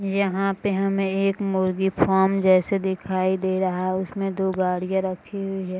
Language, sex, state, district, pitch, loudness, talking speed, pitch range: Hindi, female, Bihar, Purnia, 190 Hz, -23 LUFS, 175 wpm, 185-195 Hz